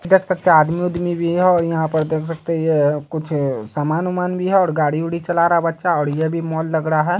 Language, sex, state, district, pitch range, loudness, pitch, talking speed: Hindi, male, Bihar, Saharsa, 155-175 Hz, -18 LUFS, 165 Hz, 265 wpm